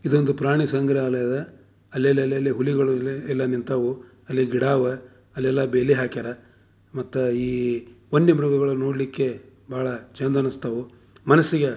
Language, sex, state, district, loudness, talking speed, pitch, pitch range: Kannada, male, Karnataka, Dharwad, -23 LUFS, 110 wpm, 130 Hz, 125-135 Hz